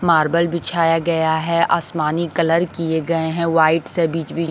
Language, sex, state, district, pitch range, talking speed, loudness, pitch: Hindi, female, Bihar, Patna, 160-170 Hz, 160 wpm, -18 LUFS, 165 Hz